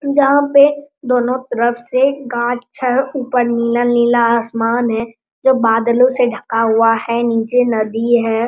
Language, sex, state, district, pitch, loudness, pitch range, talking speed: Hindi, male, Bihar, Araria, 240 Hz, -15 LUFS, 230-255 Hz, 140 wpm